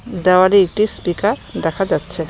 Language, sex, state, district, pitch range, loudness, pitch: Bengali, female, West Bengal, Cooch Behar, 175-200 Hz, -16 LUFS, 185 Hz